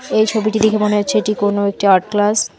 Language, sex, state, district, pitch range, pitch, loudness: Bengali, female, West Bengal, Alipurduar, 205-215 Hz, 210 Hz, -15 LUFS